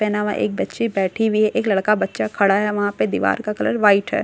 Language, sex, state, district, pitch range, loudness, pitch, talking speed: Hindi, female, Bihar, Katihar, 200-215 Hz, -19 LUFS, 210 Hz, 285 wpm